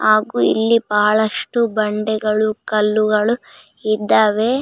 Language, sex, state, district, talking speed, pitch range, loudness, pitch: Kannada, female, Karnataka, Raichur, 80 wpm, 215-220 Hz, -17 LUFS, 215 Hz